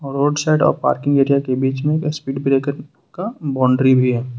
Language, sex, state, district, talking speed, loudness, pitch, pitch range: Hindi, male, Jharkhand, Ranchi, 190 wpm, -18 LUFS, 140 Hz, 130-150 Hz